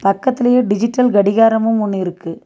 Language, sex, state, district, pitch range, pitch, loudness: Tamil, female, Tamil Nadu, Nilgiris, 195-245 Hz, 220 Hz, -15 LUFS